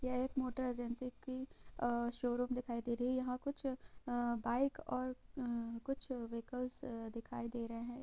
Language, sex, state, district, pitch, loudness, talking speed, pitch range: Hindi, female, Bihar, Gopalganj, 250 Hz, -41 LUFS, 170 wpm, 235-255 Hz